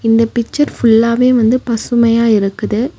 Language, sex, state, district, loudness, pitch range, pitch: Tamil, female, Tamil Nadu, Nilgiris, -13 LUFS, 225-240 Hz, 230 Hz